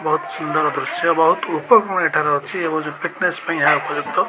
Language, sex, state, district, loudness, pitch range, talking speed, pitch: Odia, male, Odisha, Malkangiri, -18 LUFS, 150-170 Hz, 180 wpm, 160 Hz